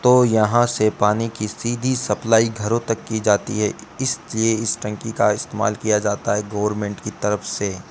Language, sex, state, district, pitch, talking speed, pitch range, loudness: Hindi, male, Rajasthan, Bikaner, 110 Hz, 180 wpm, 105-115 Hz, -20 LUFS